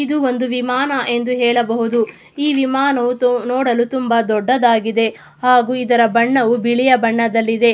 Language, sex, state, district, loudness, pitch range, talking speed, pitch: Kannada, female, Karnataka, Mysore, -16 LUFS, 235-255 Hz, 110 wpm, 245 Hz